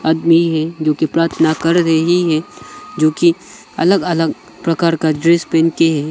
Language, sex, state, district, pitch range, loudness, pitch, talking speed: Hindi, male, Arunachal Pradesh, Longding, 160-170 Hz, -15 LUFS, 165 Hz, 165 wpm